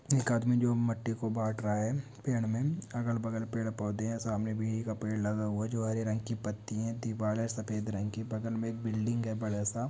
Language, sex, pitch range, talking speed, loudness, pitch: Hindi, male, 110-115 Hz, 195 wpm, -34 LUFS, 110 Hz